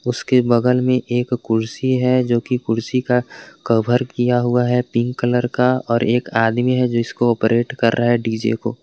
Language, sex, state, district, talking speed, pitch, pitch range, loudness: Hindi, male, Jharkhand, Garhwa, 195 wpm, 120 Hz, 115-125 Hz, -18 LUFS